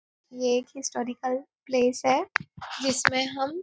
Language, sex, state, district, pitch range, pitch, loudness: Hindi, female, Maharashtra, Nagpur, 250-275 Hz, 260 Hz, -27 LUFS